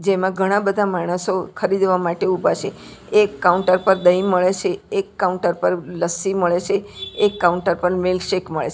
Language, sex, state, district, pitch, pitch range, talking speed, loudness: Gujarati, female, Gujarat, Valsad, 185 Hz, 180-195 Hz, 180 wpm, -19 LUFS